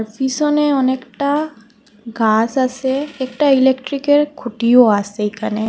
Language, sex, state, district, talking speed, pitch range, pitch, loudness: Bengali, female, Assam, Hailakandi, 95 wpm, 225-280 Hz, 260 Hz, -16 LUFS